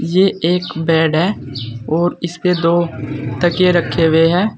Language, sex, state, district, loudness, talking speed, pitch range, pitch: Hindi, male, Uttar Pradesh, Saharanpur, -16 LUFS, 145 wpm, 160-180 Hz, 170 Hz